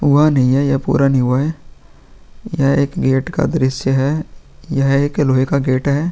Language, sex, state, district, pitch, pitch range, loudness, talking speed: Hindi, male, Bihar, Vaishali, 140 Hz, 135-150 Hz, -16 LUFS, 205 wpm